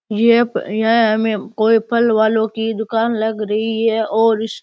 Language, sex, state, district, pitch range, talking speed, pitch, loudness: Rajasthani, male, Rajasthan, Churu, 220-225 Hz, 170 wpm, 220 Hz, -16 LUFS